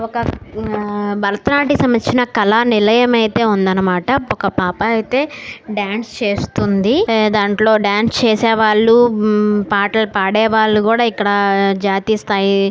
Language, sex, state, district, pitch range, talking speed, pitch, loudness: Telugu, female, Telangana, Karimnagar, 205-225 Hz, 125 wpm, 215 Hz, -15 LUFS